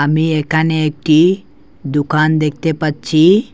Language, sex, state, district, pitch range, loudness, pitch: Bengali, male, Assam, Hailakandi, 150-160 Hz, -14 LUFS, 155 Hz